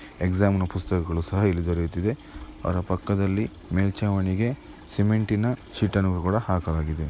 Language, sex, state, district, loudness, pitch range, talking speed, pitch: Kannada, male, Karnataka, Mysore, -25 LUFS, 90-105 Hz, 110 wpm, 95 Hz